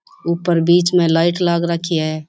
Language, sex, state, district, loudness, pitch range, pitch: Rajasthani, female, Rajasthan, Churu, -16 LUFS, 165-175 Hz, 170 Hz